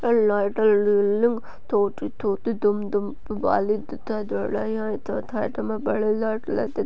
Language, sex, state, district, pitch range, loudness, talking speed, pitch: Hindi, female, Maharashtra, Sindhudurg, 205-220 Hz, -24 LUFS, 115 wpm, 215 Hz